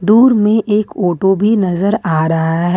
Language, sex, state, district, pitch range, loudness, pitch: Hindi, female, Jharkhand, Ranchi, 175-215 Hz, -13 LUFS, 195 Hz